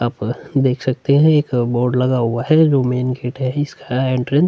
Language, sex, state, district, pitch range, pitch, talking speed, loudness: Hindi, male, Chhattisgarh, Sukma, 125-140 Hz, 130 Hz, 215 wpm, -17 LUFS